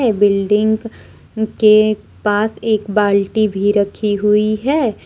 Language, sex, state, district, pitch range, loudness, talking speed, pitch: Hindi, female, Jharkhand, Deoghar, 205-220 Hz, -15 LUFS, 120 wpm, 210 Hz